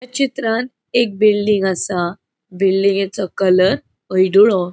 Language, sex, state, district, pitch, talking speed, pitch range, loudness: Konkani, female, Goa, North and South Goa, 195 Hz, 100 wpm, 185-220 Hz, -16 LUFS